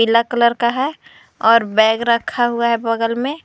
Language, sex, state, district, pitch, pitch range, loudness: Hindi, female, Uttar Pradesh, Lucknow, 235 Hz, 230-240 Hz, -16 LUFS